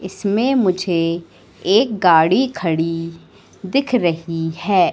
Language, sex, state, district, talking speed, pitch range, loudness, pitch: Hindi, female, Madhya Pradesh, Katni, 95 wpm, 165-205 Hz, -18 LUFS, 175 Hz